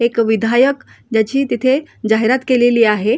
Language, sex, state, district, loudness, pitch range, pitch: Marathi, female, Maharashtra, Solapur, -15 LUFS, 225-260 Hz, 240 Hz